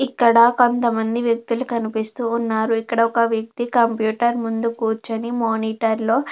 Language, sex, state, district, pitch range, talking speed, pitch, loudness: Telugu, female, Andhra Pradesh, Anantapur, 225-235 Hz, 135 wpm, 230 Hz, -19 LUFS